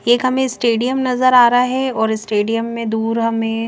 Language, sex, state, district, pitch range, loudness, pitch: Hindi, female, Chandigarh, Chandigarh, 225-255 Hz, -16 LUFS, 235 Hz